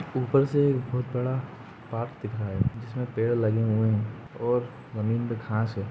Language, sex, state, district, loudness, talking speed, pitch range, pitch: Hindi, male, Uttar Pradesh, Budaun, -28 LUFS, 195 wpm, 110-125 Hz, 120 Hz